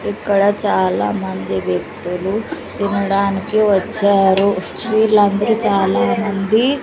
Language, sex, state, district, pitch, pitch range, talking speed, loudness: Telugu, female, Andhra Pradesh, Sri Satya Sai, 200 Hz, 190-210 Hz, 70 wpm, -16 LUFS